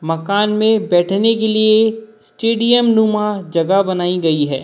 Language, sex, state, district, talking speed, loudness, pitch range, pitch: Hindi, male, Chhattisgarh, Raipur, 140 wpm, -15 LUFS, 175-220 Hz, 210 Hz